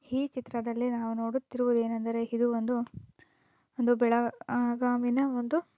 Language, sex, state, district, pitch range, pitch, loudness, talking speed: Kannada, female, Karnataka, Belgaum, 235-250 Hz, 240 Hz, -30 LUFS, 105 wpm